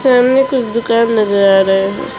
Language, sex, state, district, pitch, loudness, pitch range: Hindi, female, West Bengal, Alipurduar, 230 Hz, -12 LUFS, 200-250 Hz